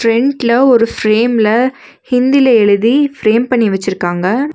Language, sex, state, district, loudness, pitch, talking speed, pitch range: Tamil, female, Tamil Nadu, Nilgiris, -12 LUFS, 235 Hz, 120 wpm, 215-255 Hz